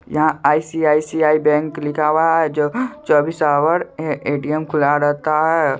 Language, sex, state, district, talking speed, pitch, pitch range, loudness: Hindi, male, Bihar, Supaul, 135 wpm, 155 Hz, 150-160 Hz, -17 LUFS